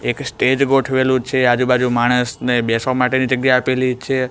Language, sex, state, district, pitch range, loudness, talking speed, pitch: Gujarati, male, Gujarat, Gandhinagar, 125-130 Hz, -16 LUFS, 165 wpm, 130 Hz